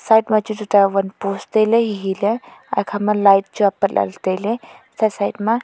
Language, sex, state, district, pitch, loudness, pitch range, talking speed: Wancho, female, Arunachal Pradesh, Longding, 205 Hz, -18 LUFS, 195-220 Hz, 190 wpm